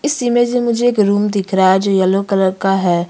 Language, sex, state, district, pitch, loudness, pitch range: Hindi, female, Chhattisgarh, Kabirdham, 200 Hz, -14 LUFS, 190-240 Hz